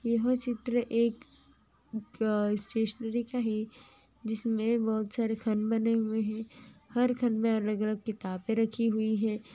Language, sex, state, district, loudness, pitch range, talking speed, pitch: Hindi, female, Andhra Pradesh, Chittoor, -30 LUFS, 220-235 Hz, 140 wpm, 225 Hz